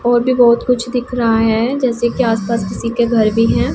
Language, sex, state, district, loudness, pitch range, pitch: Hindi, female, Punjab, Pathankot, -15 LUFS, 225-245 Hz, 235 Hz